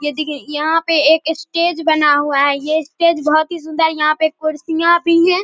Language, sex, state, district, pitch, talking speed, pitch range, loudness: Hindi, female, Bihar, Samastipur, 315 Hz, 220 wpm, 300-335 Hz, -15 LUFS